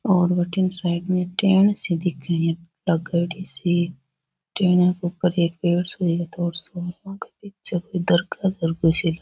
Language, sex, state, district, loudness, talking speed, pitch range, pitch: Rajasthani, female, Rajasthan, Churu, -22 LUFS, 80 wpm, 170-185 Hz, 175 Hz